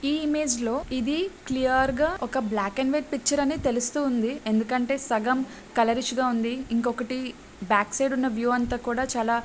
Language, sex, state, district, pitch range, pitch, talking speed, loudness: Telugu, female, Andhra Pradesh, Srikakulam, 235-270 Hz, 255 Hz, 170 wpm, -26 LUFS